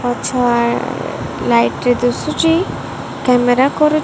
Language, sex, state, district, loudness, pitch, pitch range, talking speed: Odia, female, Odisha, Malkangiri, -16 LUFS, 245 Hz, 245-280 Hz, 105 wpm